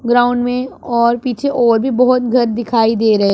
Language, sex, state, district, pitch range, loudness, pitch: Hindi, female, Punjab, Pathankot, 230-250 Hz, -14 LUFS, 245 Hz